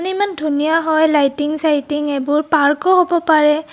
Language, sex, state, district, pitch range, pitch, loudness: Assamese, female, Assam, Kamrup Metropolitan, 295-325 Hz, 305 Hz, -15 LUFS